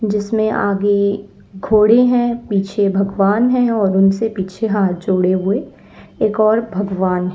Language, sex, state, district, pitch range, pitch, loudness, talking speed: Hindi, female, Uttar Pradesh, Lalitpur, 195-220 Hz, 205 Hz, -16 LUFS, 140 wpm